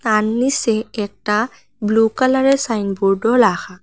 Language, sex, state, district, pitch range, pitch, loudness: Bengali, female, Assam, Hailakandi, 210-245 Hz, 225 Hz, -17 LUFS